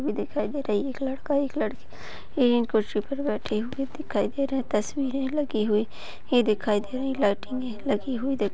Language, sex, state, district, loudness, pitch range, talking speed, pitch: Hindi, female, Chhattisgarh, Balrampur, -27 LUFS, 215-275 Hz, 220 wpm, 255 Hz